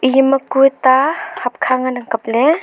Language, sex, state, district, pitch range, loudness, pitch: Wancho, female, Arunachal Pradesh, Longding, 255-275 Hz, -15 LUFS, 270 Hz